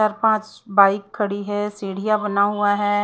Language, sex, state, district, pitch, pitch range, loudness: Hindi, female, Haryana, Rohtak, 205 Hz, 200-215 Hz, -20 LUFS